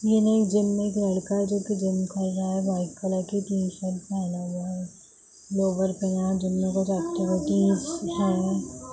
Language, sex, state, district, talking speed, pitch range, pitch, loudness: Hindi, female, Bihar, Lakhisarai, 160 wpm, 185-200 Hz, 190 Hz, -26 LUFS